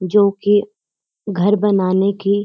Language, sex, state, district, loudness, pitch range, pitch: Hindi, female, Uttarakhand, Uttarkashi, -16 LUFS, 195-205 Hz, 200 Hz